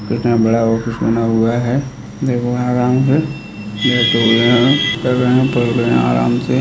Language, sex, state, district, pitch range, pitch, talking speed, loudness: Hindi, male, Uttar Pradesh, Budaun, 115-125 Hz, 120 Hz, 135 wpm, -15 LUFS